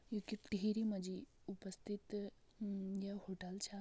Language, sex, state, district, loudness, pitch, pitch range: Garhwali, female, Uttarakhand, Tehri Garhwal, -45 LUFS, 200 Hz, 195-210 Hz